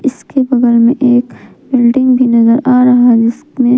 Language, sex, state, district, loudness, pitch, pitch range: Hindi, female, Jharkhand, Palamu, -10 LUFS, 245 Hz, 240-255 Hz